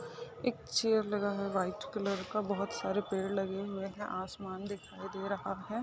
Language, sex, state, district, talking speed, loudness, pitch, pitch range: Hindi, male, Chhattisgarh, Balrampur, 195 wpm, -36 LUFS, 200 Hz, 195-210 Hz